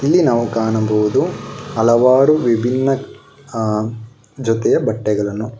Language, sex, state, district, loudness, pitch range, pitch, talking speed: Kannada, male, Karnataka, Bangalore, -16 LUFS, 110-130 Hz, 115 Hz, 85 wpm